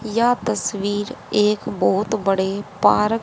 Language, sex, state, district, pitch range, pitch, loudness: Hindi, female, Haryana, Rohtak, 200-220 Hz, 210 Hz, -20 LUFS